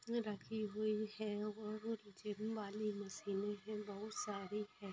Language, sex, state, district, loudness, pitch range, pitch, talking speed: Bhojpuri, female, Bihar, Saran, -44 LUFS, 205-215 Hz, 210 Hz, 145 wpm